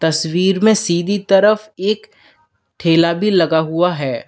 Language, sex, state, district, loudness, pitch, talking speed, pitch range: Hindi, male, Uttar Pradesh, Lalitpur, -15 LUFS, 170 Hz, 140 wpm, 160-200 Hz